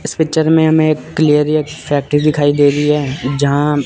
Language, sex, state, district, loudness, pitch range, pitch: Hindi, male, Chandigarh, Chandigarh, -14 LUFS, 145-155 Hz, 150 Hz